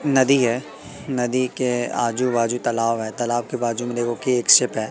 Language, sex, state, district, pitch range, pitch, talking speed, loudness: Hindi, male, Madhya Pradesh, Katni, 120-125 Hz, 120 Hz, 220 wpm, -20 LUFS